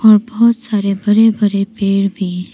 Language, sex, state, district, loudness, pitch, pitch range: Hindi, female, Arunachal Pradesh, Papum Pare, -14 LUFS, 205 Hz, 195-220 Hz